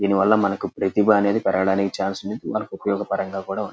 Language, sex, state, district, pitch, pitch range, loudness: Telugu, male, Andhra Pradesh, Krishna, 100 Hz, 95-105 Hz, -22 LUFS